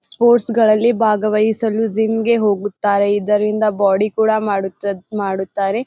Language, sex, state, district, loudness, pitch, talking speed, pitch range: Kannada, female, Karnataka, Bijapur, -16 LUFS, 215 Hz, 100 wpm, 200-220 Hz